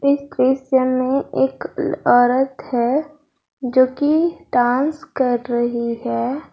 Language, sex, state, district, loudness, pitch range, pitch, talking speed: Hindi, female, Jharkhand, Garhwa, -19 LUFS, 245-280 Hz, 260 Hz, 110 wpm